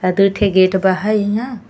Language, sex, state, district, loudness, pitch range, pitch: Bhojpuri, female, Uttar Pradesh, Ghazipur, -15 LUFS, 190-210 Hz, 195 Hz